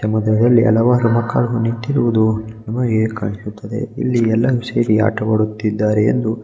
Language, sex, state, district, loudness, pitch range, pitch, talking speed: Kannada, male, Karnataka, Mysore, -17 LUFS, 110-120 Hz, 110 Hz, 110 wpm